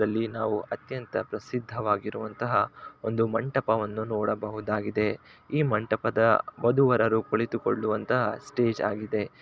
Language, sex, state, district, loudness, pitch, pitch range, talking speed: Kannada, male, Karnataka, Shimoga, -27 LUFS, 110 Hz, 105-115 Hz, 185 wpm